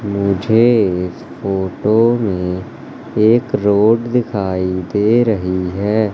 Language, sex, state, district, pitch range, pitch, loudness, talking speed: Hindi, male, Madhya Pradesh, Katni, 95-115 Hz, 105 Hz, -16 LUFS, 90 wpm